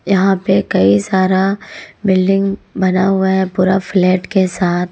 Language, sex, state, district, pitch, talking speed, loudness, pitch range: Hindi, female, Jharkhand, Ranchi, 190 Hz, 145 wpm, -14 LUFS, 185-195 Hz